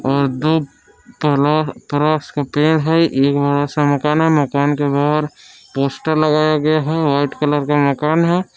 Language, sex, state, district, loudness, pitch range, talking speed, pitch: Hindi, male, Jharkhand, Palamu, -16 LUFS, 140-155 Hz, 170 wpm, 150 Hz